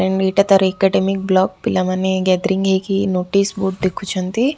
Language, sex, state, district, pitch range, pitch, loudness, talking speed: Odia, female, Odisha, Khordha, 185-195 Hz, 190 Hz, -17 LUFS, 145 wpm